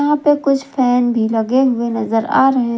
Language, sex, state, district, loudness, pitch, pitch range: Hindi, female, Jharkhand, Garhwa, -15 LUFS, 250 Hz, 230-275 Hz